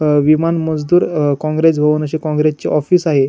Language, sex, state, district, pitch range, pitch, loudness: Marathi, male, Maharashtra, Chandrapur, 150-160 Hz, 155 Hz, -15 LUFS